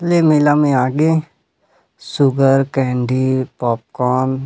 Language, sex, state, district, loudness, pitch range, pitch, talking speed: Chhattisgarhi, male, Chhattisgarh, Rajnandgaon, -16 LUFS, 125-145 Hz, 135 Hz, 120 wpm